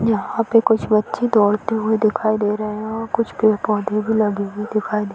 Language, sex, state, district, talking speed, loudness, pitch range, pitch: Hindi, female, Uttar Pradesh, Varanasi, 220 wpm, -19 LUFS, 210-220 Hz, 215 Hz